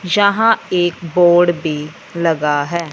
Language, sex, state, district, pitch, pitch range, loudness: Hindi, male, Punjab, Fazilka, 175 Hz, 160-180 Hz, -15 LUFS